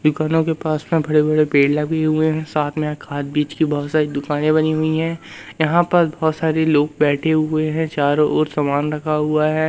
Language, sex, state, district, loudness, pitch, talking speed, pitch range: Hindi, male, Madhya Pradesh, Umaria, -18 LUFS, 155 Hz, 215 wpm, 150-155 Hz